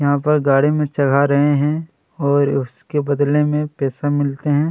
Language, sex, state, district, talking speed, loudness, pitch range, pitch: Hindi, male, Chhattisgarh, Kabirdham, 180 wpm, -17 LUFS, 140-150 Hz, 145 Hz